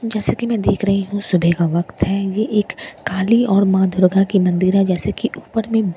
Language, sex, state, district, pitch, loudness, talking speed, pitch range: Hindi, female, Bihar, Katihar, 195 Hz, -17 LUFS, 240 wpm, 185-215 Hz